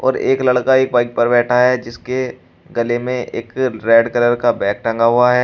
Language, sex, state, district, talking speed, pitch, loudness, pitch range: Hindi, male, Uttar Pradesh, Shamli, 210 wpm, 120 Hz, -16 LUFS, 115-125 Hz